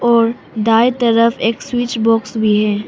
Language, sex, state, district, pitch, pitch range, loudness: Hindi, female, Arunachal Pradesh, Papum Pare, 230 Hz, 225-235 Hz, -15 LUFS